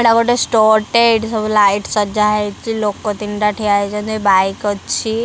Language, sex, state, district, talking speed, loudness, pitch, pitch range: Odia, female, Odisha, Khordha, 170 wpm, -15 LUFS, 210 Hz, 205-220 Hz